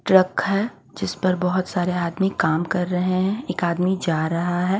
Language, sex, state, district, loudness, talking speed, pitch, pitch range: Hindi, female, Haryana, Charkhi Dadri, -22 LUFS, 200 wpm, 180 Hz, 175-190 Hz